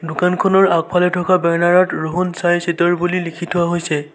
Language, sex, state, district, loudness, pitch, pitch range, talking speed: Assamese, male, Assam, Sonitpur, -16 LUFS, 175 Hz, 170-180 Hz, 160 wpm